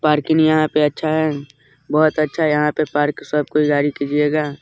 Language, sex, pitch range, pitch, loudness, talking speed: Bajjika, male, 145-155 Hz, 150 Hz, -18 LUFS, 180 wpm